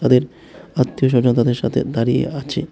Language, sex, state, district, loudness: Bengali, male, Tripura, West Tripura, -18 LUFS